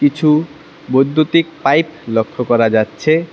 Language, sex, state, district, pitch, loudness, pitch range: Bengali, male, West Bengal, Cooch Behar, 150 Hz, -15 LUFS, 125-160 Hz